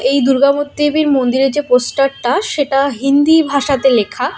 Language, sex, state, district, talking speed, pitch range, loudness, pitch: Bengali, female, West Bengal, Alipurduar, 165 wpm, 265-295 Hz, -13 LUFS, 275 Hz